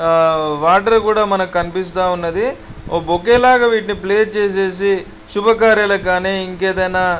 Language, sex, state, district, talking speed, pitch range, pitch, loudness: Telugu, male, Andhra Pradesh, Guntur, 125 wpm, 180-215 Hz, 190 Hz, -15 LUFS